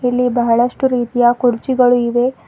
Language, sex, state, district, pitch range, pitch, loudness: Kannada, female, Karnataka, Bidar, 240-250 Hz, 245 Hz, -15 LUFS